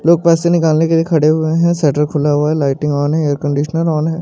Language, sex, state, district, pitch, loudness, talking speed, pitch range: Hindi, male, Maharashtra, Mumbai Suburban, 155 Hz, -14 LUFS, 270 wpm, 150-165 Hz